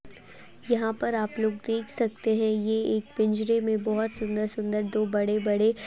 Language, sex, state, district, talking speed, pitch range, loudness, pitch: Hindi, female, Uttar Pradesh, Etah, 165 wpm, 215-225 Hz, -27 LUFS, 220 Hz